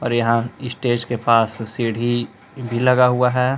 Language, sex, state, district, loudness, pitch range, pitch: Hindi, male, Jharkhand, Palamu, -19 LUFS, 115-125 Hz, 120 Hz